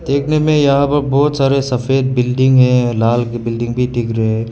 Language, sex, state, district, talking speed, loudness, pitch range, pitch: Hindi, male, Meghalaya, West Garo Hills, 200 wpm, -14 LUFS, 120-140 Hz, 125 Hz